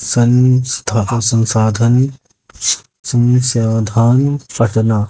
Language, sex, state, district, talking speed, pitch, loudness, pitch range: Hindi, male, Haryana, Jhajjar, 45 wpm, 115 Hz, -14 LUFS, 110-125 Hz